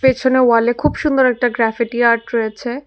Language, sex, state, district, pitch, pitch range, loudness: Bengali, female, Tripura, West Tripura, 240 Hz, 235-260 Hz, -15 LUFS